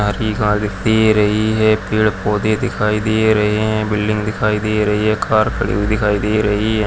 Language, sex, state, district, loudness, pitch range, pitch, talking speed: Hindi, male, Chhattisgarh, Jashpur, -16 LUFS, 105-110 Hz, 105 Hz, 220 wpm